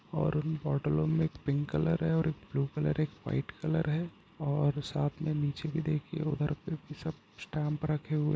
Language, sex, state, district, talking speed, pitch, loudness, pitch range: Hindi, male, Bihar, Gopalganj, 215 wpm, 150 Hz, -33 LUFS, 145-160 Hz